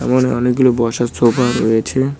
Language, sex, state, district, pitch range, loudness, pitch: Bengali, male, West Bengal, Cooch Behar, 120-130 Hz, -15 LUFS, 125 Hz